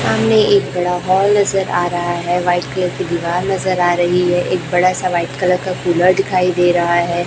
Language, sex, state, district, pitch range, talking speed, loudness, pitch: Hindi, female, Chhattisgarh, Raipur, 175-185 Hz, 225 wpm, -15 LUFS, 180 Hz